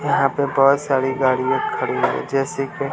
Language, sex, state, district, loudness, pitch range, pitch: Hindi, male, Bihar, West Champaran, -19 LUFS, 135-140 Hz, 135 Hz